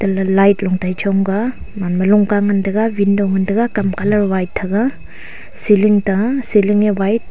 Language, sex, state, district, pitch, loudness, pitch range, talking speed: Wancho, female, Arunachal Pradesh, Longding, 200 Hz, -15 LUFS, 195-210 Hz, 170 wpm